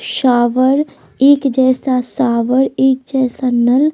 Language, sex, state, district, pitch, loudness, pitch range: Hindi, female, Bihar, West Champaran, 260 Hz, -14 LUFS, 250-270 Hz